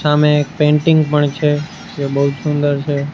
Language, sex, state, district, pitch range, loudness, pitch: Gujarati, male, Gujarat, Gandhinagar, 145-150 Hz, -15 LUFS, 150 Hz